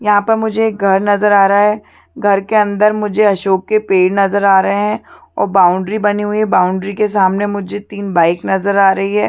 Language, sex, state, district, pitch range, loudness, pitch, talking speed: Hindi, female, Chhattisgarh, Bastar, 195-210 Hz, -13 LUFS, 205 Hz, 230 wpm